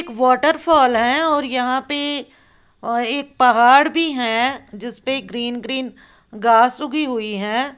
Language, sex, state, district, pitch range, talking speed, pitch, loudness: Hindi, female, Uttar Pradesh, Lalitpur, 240-285 Hz, 140 wpm, 255 Hz, -17 LUFS